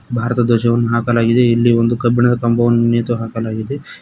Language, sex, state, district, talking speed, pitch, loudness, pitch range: Kannada, male, Karnataka, Koppal, 135 wpm, 120 Hz, -15 LUFS, 115-120 Hz